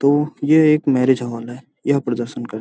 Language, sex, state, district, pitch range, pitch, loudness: Hindi, male, Bihar, Gopalganj, 120-145 Hz, 130 Hz, -18 LUFS